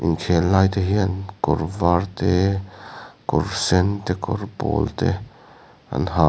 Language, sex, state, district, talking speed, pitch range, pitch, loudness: Mizo, male, Mizoram, Aizawl, 145 wpm, 85-100 Hz, 95 Hz, -21 LUFS